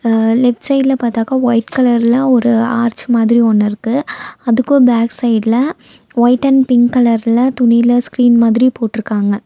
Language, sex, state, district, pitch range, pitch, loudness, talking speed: Tamil, female, Tamil Nadu, Nilgiris, 230-250 Hz, 240 Hz, -12 LUFS, 140 wpm